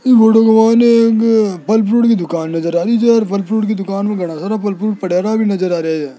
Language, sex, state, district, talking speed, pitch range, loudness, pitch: Hindi, male, Rajasthan, Jaipur, 270 wpm, 185-225 Hz, -13 LUFS, 215 Hz